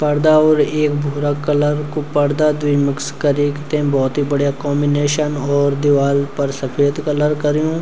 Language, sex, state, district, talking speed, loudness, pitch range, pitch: Garhwali, male, Uttarakhand, Uttarkashi, 155 wpm, -17 LUFS, 140-150 Hz, 145 Hz